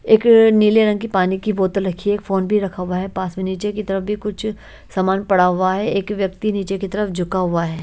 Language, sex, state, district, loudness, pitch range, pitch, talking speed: Hindi, male, Delhi, New Delhi, -18 LUFS, 185-210 Hz, 195 Hz, 260 wpm